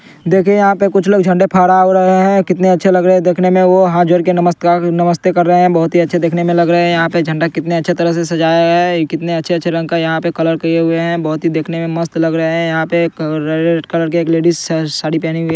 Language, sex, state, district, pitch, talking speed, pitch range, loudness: Hindi, male, Chandigarh, Chandigarh, 170 Hz, 270 wpm, 165-180 Hz, -13 LUFS